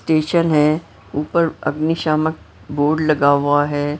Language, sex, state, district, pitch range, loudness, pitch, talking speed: Hindi, female, Maharashtra, Mumbai Suburban, 145-160 Hz, -18 LUFS, 155 Hz, 120 wpm